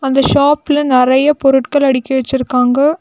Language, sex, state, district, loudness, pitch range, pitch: Tamil, female, Tamil Nadu, Nilgiris, -12 LUFS, 260-290 Hz, 270 Hz